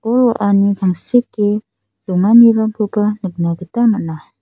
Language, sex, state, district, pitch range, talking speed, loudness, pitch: Garo, female, Meghalaya, South Garo Hills, 190-225 Hz, 80 wpm, -15 LUFS, 210 Hz